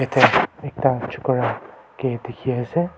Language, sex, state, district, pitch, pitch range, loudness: Nagamese, male, Nagaland, Kohima, 130 Hz, 120-130 Hz, -21 LUFS